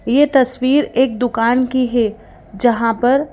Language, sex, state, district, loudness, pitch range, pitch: Hindi, female, Madhya Pradesh, Bhopal, -15 LUFS, 235-260 Hz, 250 Hz